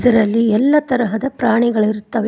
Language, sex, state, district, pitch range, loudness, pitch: Kannada, female, Karnataka, Koppal, 220-255 Hz, -16 LUFS, 230 Hz